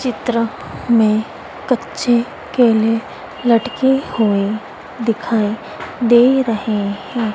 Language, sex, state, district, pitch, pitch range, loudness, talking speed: Hindi, female, Madhya Pradesh, Dhar, 230 Hz, 220-245 Hz, -17 LUFS, 80 wpm